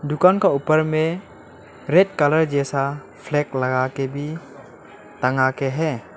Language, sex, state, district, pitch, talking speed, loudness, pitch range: Hindi, male, Arunachal Pradesh, Lower Dibang Valley, 145 Hz, 125 wpm, -20 LUFS, 135-160 Hz